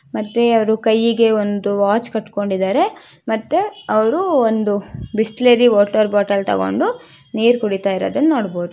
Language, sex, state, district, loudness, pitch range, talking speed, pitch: Kannada, female, Karnataka, Shimoga, -17 LUFS, 205-235 Hz, 125 wpm, 220 Hz